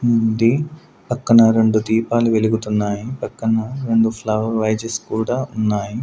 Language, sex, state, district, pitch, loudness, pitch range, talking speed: Telugu, male, Andhra Pradesh, Sri Satya Sai, 115 Hz, -18 LUFS, 110-120 Hz, 110 wpm